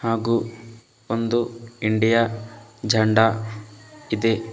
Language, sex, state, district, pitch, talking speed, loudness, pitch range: Kannada, male, Karnataka, Bidar, 115 Hz, 65 wpm, -22 LUFS, 110-115 Hz